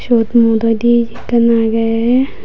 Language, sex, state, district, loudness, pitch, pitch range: Chakma, female, Tripura, Unakoti, -13 LUFS, 235 Hz, 225-235 Hz